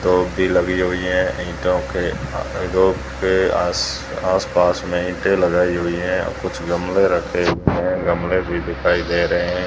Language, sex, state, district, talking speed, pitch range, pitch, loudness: Hindi, male, Rajasthan, Jaisalmer, 155 wpm, 85-90 Hz, 90 Hz, -19 LUFS